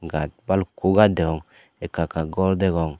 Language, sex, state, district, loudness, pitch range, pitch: Chakma, male, Tripura, Dhalai, -22 LUFS, 80-95 Hz, 85 Hz